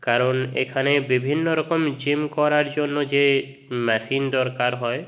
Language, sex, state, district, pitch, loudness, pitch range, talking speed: Bengali, male, West Bengal, Jhargram, 135 Hz, -22 LUFS, 130-150 Hz, 130 wpm